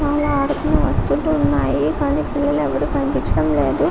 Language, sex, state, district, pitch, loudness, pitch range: Telugu, female, Telangana, Karimnagar, 290 Hz, -19 LUFS, 285-295 Hz